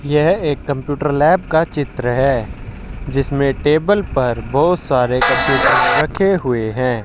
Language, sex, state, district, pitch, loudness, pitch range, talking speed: Hindi, male, Haryana, Jhajjar, 140 Hz, -16 LUFS, 125-155 Hz, 135 wpm